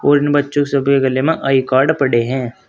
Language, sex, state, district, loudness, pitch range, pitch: Hindi, male, Uttar Pradesh, Saharanpur, -15 LUFS, 130-145 Hz, 135 Hz